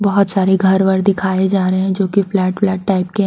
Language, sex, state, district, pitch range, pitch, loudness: Hindi, female, Haryana, Rohtak, 190-200 Hz, 190 Hz, -15 LUFS